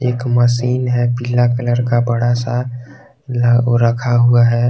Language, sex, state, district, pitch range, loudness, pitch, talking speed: Hindi, male, Jharkhand, Garhwa, 120-125 Hz, -15 LUFS, 120 Hz, 140 wpm